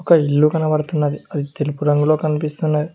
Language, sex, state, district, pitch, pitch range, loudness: Telugu, male, Telangana, Mahabubabad, 150 Hz, 145-155 Hz, -18 LUFS